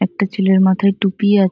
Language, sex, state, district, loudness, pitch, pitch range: Bengali, female, West Bengal, North 24 Parganas, -15 LUFS, 195 Hz, 190-200 Hz